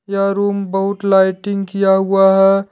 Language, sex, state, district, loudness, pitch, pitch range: Hindi, male, Jharkhand, Deoghar, -15 LUFS, 195 Hz, 195-200 Hz